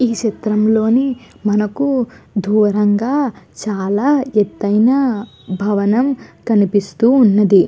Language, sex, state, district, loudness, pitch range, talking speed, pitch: Telugu, female, Andhra Pradesh, Guntur, -16 LUFS, 205-250 Hz, 85 wpm, 215 Hz